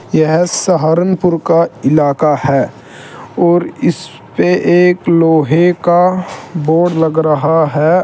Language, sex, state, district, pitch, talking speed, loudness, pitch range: Hindi, male, Uttar Pradesh, Saharanpur, 165 Hz, 105 wpm, -12 LUFS, 155-175 Hz